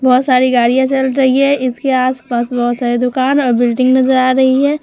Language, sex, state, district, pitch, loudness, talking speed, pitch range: Hindi, female, Bihar, Vaishali, 255 Hz, -13 LUFS, 210 wpm, 250-265 Hz